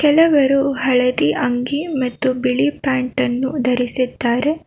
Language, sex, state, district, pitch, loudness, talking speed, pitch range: Kannada, female, Karnataka, Bangalore, 260 Hz, -17 LUFS, 105 wpm, 250-280 Hz